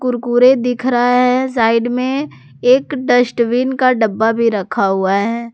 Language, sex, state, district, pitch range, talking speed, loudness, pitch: Hindi, female, Jharkhand, Garhwa, 225-255 Hz, 150 wpm, -14 LUFS, 245 Hz